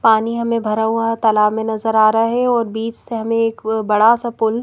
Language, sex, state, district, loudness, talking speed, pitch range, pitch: Hindi, female, Madhya Pradesh, Bhopal, -17 LUFS, 235 wpm, 220-230 Hz, 225 Hz